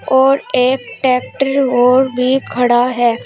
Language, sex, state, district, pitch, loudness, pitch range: Hindi, female, Uttar Pradesh, Shamli, 255 Hz, -14 LUFS, 245-265 Hz